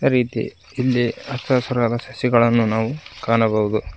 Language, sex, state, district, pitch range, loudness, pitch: Kannada, male, Karnataka, Koppal, 110-125 Hz, -20 LUFS, 120 Hz